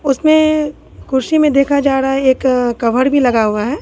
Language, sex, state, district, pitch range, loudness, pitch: Hindi, female, Bihar, Katihar, 255-290 Hz, -14 LUFS, 270 Hz